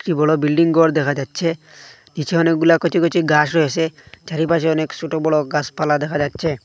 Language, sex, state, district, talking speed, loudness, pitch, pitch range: Bengali, male, Assam, Hailakandi, 170 wpm, -18 LUFS, 160 Hz, 150-165 Hz